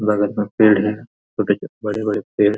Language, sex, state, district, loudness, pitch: Hindi, male, Bihar, Araria, -19 LUFS, 105 Hz